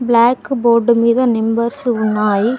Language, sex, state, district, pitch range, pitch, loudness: Telugu, female, Telangana, Mahabubabad, 225-245 Hz, 235 Hz, -14 LUFS